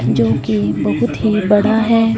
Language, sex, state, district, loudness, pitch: Hindi, female, Punjab, Fazilka, -15 LUFS, 195 Hz